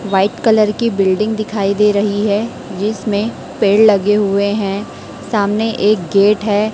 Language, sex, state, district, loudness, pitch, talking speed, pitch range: Hindi, female, Chhattisgarh, Raipur, -15 LUFS, 205 Hz, 150 wpm, 200-215 Hz